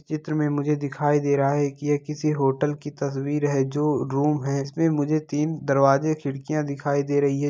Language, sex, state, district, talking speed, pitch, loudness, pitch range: Angika, male, Bihar, Madhepura, 210 wpm, 145 Hz, -24 LUFS, 140-150 Hz